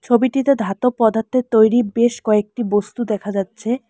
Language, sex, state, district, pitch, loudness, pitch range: Bengali, female, West Bengal, Alipurduar, 230 Hz, -18 LUFS, 210-245 Hz